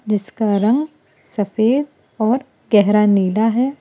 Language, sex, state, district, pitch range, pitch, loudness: Hindi, female, Gujarat, Valsad, 210-250 Hz, 220 Hz, -17 LUFS